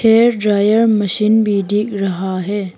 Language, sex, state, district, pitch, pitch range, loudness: Hindi, female, Arunachal Pradesh, Papum Pare, 205 Hz, 200-220 Hz, -15 LUFS